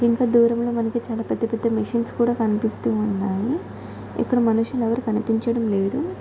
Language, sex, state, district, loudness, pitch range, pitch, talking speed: Telugu, female, Andhra Pradesh, Visakhapatnam, -22 LUFS, 225-235 Hz, 230 Hz, 135 wpm